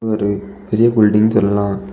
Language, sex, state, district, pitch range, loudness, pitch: Tamil, male, Tamil Nadu, Kanyakumari, 100-110 Hz, -15 LUFS, 105 Hz